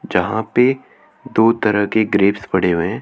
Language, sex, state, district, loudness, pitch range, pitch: Hindi, male, Chandigarh, Chandigarh, -17 LUFS, 100-115 Hz, 105 Hz